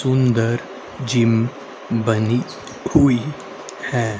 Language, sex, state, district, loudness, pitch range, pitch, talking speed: Hindi, male, Haryana, Rohtak, -20 LUFS, 115-135 Hz, 120 Hz, 70 wpm